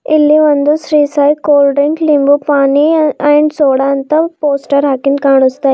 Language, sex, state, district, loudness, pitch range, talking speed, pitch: Kannada, female, Karnataka, Bidar, -10 LUFS, 280-300 Hz, 145 wpm, 290 Hz